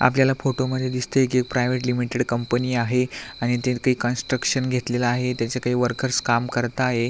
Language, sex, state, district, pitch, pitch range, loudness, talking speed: Marathi, male, Maharashtra, Aurangabad, 125 Hz, 120-130 Hz, -23 LUFS, 170 wpm